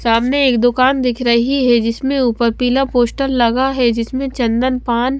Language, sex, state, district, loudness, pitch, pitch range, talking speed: Hindi, female, Bihar, West Champaran, -15 LUFS, 250 Hz, 235-265 Hz, 175 wpm